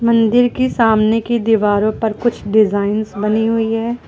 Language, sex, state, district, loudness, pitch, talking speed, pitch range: Hindi, female, Uttar Pradesh, Lucknow, -15 LUFS, 225 Hz, 160 wpm, 215-235 Hz